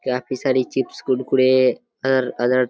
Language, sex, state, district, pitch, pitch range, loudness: Hindi, male, Uttar Pradesh, Deoria, 130 Hz, 125-130 Hz, -20 LUFS